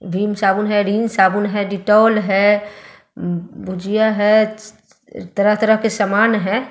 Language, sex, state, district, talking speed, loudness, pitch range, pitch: Hindi, female, Bihar, Sitamarhi, 135 wpm, -16 LUFS, 200-215 Hz, 205 Hz